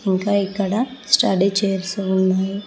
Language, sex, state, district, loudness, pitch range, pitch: Telugu, female, Telangana, Mahabubabad, -19 LUFS, 190-205 Hz, 195 Hz